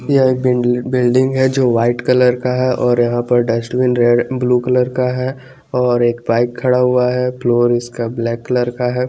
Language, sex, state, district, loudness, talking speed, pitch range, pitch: Hindi, male, Chandigarh, Chandigarh, -15 LUFS, 200 wpm, 120-125 Hz, 125 Hz